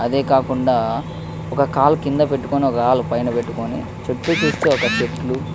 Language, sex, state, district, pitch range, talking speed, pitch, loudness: Telugu, male, Andhra Pradesh, Krishna, 120-140 Hz, 150 wpm, 135 Hz, -19 LUFS